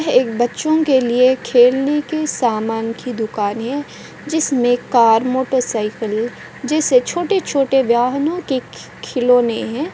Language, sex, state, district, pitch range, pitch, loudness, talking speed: Hindi, female, Bihar, Madhepura, 235-285 Hz, 255 Hz, -17 LUFS, 125 wpm